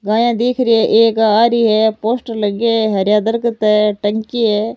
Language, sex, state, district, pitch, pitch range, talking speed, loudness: Rajasthani, female, Rajasthan, Nagaur, 225 Hz, 210-230 Hz, 200 wpm, -14 LUFS